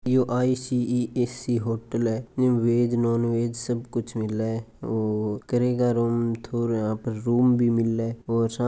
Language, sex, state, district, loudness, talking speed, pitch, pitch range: Marwari, male, Rajasthan, Churu, -25 LUFS, 185 wpm, 120 Hz, 115-125 Hz